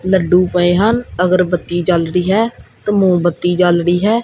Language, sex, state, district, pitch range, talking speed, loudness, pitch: Punjabi, male, Punjab, Kapurthala, 175-190 Hz, 185 wpm, -14 LUFS, 180 Hz